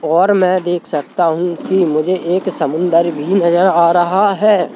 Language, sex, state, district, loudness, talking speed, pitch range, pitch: Hindi, male, Madhya Pradesh, Bhopal, -14 LUFS, 175 wpm, 170-185 Hz, 175 Hz